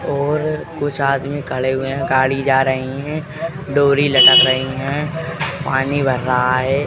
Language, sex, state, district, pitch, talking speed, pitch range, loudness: Hindi, male, Uttar Pradesh, Jalaun, 140 Hz, 155 wpm, 130-145 Hz, -16 LUFS